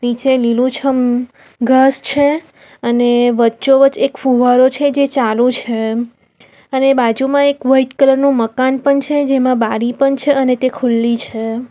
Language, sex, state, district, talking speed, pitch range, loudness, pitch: Gujarati, female, Gujarat, Valsad, 150 wpm, 240-275 Hz, -14 LUFS, 255 Hz